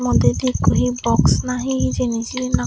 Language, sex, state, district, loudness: Chakma, female, Tripura, Dhalai, -19 LUFS